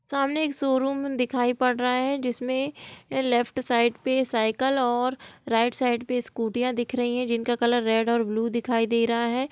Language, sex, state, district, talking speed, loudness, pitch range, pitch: Hindi, female, Bihar, Gopalganj, 185 wpm, -25 LUFS, 235-260 Hz, 245 Hz